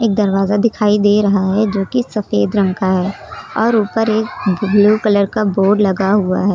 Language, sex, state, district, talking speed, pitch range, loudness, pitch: Hindi, female, Uttar Pradesh, Lucknow, 195 wpm, 195-215 Hz, -15 LUFS, 205 Hz